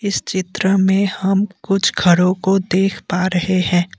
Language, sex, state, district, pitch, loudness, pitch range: Hindi, male, Assam, Kamrup Metropolitan, 190 Hz, -17 LUFS, 185-195 Hz